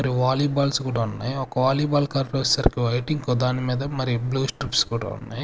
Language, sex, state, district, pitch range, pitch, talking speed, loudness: Telugu, male, Andhra Pradesh, Sri Satya Sai, 125-140 Hz, 130 Hz, 210 wpm, -23 LUFS